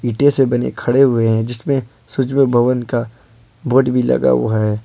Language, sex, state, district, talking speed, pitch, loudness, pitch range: Hindi, male, Jharkhand, Ranchi, 185 wpm, 120 Hz, -16 LUFS, 115-135 Hz